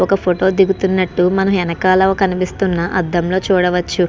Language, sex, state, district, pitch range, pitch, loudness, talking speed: Telugu, female, Andhra Pradesh, Krishna, 180-190 Hz, 185 Hz, -15 LUFS, 130 wpm